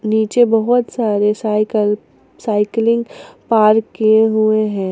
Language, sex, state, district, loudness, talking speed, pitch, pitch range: Hindi, female, Jharkhand, Ranchi, -15 LUFS, 110 wpm, 220 Hz, 210-230 Hz